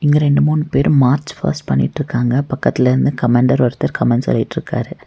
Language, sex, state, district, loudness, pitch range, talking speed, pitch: Tamil, female, Tamil Nadu, Nilgiris, -16 LUFS, 125-145 Hz, 155 wpm, 135 Hz